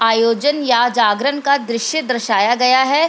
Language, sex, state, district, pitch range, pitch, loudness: Hindi, female, Bihar, Lakhisarai, 230-280 Hz, 250 Hz, -15 LUFS